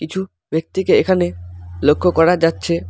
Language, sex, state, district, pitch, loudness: Bengali, male, West Bengal, Alipurduar, 160 Hz, -17 LUFS